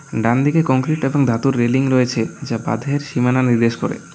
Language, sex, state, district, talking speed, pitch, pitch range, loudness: Bengali, male, West Bengal, Alipurduar, 160 wpm, 130 Hz, 120-140 Hz, -18 LUFS